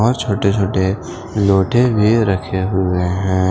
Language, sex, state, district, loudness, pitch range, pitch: Hindi, male, Punjab, Fazilka, -16 LUFS, 95-110 Hz, 95 Hz